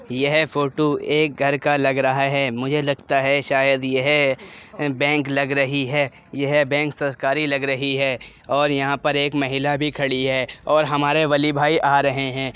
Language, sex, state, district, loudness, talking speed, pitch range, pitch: Hindi, male, Uttar Pradesh, Jyotiba Phule Nagar, -20 LUFS, 180 wpm, 135-145 Hz, 140 Hz